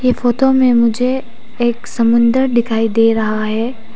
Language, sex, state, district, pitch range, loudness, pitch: Hindi, female, Arunachal Pradesh, Papum Pare, 225-250 Hz, -14 LUFS, 235 Hz